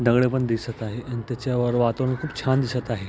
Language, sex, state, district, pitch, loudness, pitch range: Marathi, male, Maharashtra, Aurangabad, 120 Hz, -24 LUFS, 115-130 Hz